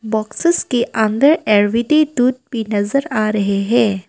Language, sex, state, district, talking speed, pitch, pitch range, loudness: Hindi, female, Arunachal Pradesh, Papum Pare, 130 wpm, 225 Hz, 215-265 Hz, -16 LUFS